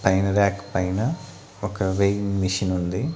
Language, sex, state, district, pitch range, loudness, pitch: Telugu, male, Andhra Pradesh, Annamaya, 95-105 Hz, -23 LUFS, 100 Hz